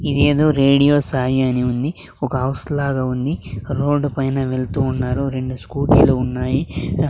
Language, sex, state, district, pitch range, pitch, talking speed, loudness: Telugu, male, Andhra Pradesh, Sri Satya Sai, 130-145 Hz, 135 Hz, 145 wpm, -18 LUFS